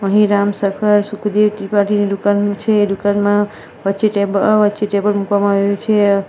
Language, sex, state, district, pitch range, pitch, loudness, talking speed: Gujarati, female, Gujarat, Valsad, 200-210 Hz, 205 Hz, -15 LUFS, 145 wpm